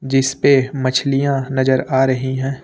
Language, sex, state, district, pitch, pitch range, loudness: Hindi, male, Uttar Pradesh, Lucknow, 135 Hz, 130-135 Hz, -17 LUFS